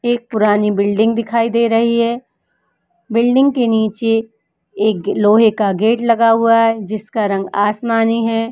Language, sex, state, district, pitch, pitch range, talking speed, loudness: Hindi, female, Uttar Pradesh, Etah, 225 Hz, 210-230 Hz, 150 wpm, -15 LUFS